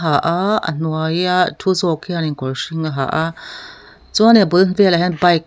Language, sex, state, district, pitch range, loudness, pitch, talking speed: Mizo, female, Mizoram, Aizawl, 160-190 Hz, -16 LUFS, 175 Hz, 210 wpm